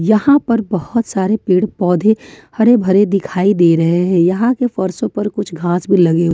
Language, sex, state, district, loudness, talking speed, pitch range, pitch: Hindi, female, Jharkhand, Ranchi, -14 LUFS, 190 wpm, 180-220 Hz, 195 Hz